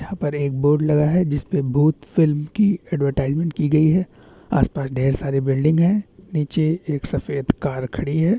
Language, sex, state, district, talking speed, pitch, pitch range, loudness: Hindi, male, Chhattisgarh, Bastar, 195 wpm, 150 Hz, 140-165 Hz, -20 LUFS